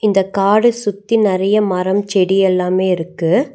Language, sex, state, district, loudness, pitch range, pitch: Tamil, female, Tamil Nadu, Nilgiris, -15 LUFS, 185-210 Hz, 195 Hz